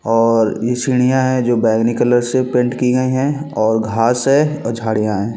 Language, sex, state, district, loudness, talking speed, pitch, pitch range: Hindi, male, Chhattisgarh, Bilaspur, -16 LUFS, 200 wpm, 120 Hz, 115-130 Hz